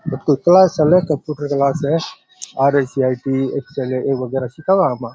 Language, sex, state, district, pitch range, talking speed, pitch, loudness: Rajasthani, male, Rajasthan, Churu, 135-175 Hz, 115 wpm, 140 Hz, -17 LUFS